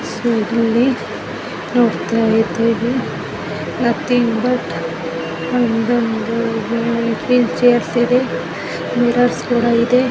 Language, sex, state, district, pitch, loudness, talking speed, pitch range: Kannada, female, Karnataka, Mysore, 235 Hz, -17 LUFS, 85 wpm, 225-245 Hz